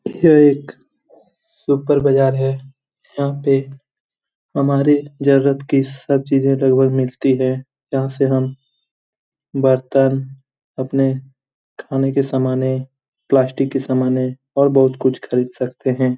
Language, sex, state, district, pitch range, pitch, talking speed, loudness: Hindi, male, Bihar, Jamui, 130-140 Hz, 135 Hz, 120 wpm, -17 LUFS